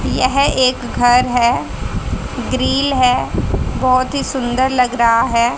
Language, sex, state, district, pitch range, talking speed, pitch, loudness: Hindi, female, Haryana, Jhajjar, 245-260 Hz, 130 wpm, 250 Hz, -15 LUFS